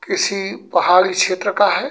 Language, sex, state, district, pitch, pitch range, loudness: Bhojpuri, male, Uttar Pradesh, Gorakhpur, 190 Hz, 185-200 Hz, -16 LUFS